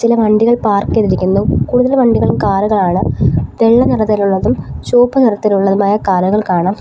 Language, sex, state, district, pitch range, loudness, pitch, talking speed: Malayalam, female, Kerala, Kollam, 195-230 Hz, -12 LUFS, 210 Hz, 115 wpm